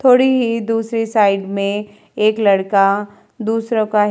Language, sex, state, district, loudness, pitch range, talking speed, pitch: Hindi, female, Uttar Pradesh, Jalaun, -16 LUFS, 200-225 Hz, 160 wpm, 215 Hz